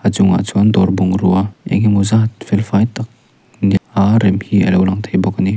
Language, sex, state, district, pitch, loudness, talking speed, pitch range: Mizo, male, Mizoram, Aizawl, 100 Hz, -14 LUFS, 185 wpm, 95-105 Hz